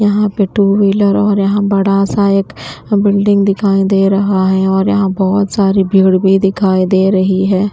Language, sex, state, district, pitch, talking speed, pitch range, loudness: Hindi, female, Haryana, Jhajjar, 195 Hz, 185 wpm, 190-200 Hz, -12 LUFS